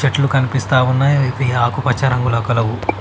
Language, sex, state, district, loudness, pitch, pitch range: Telugu, male, Telangana, Mahabubabad, -16 LUFS, 130 Hz, 120-135 Hz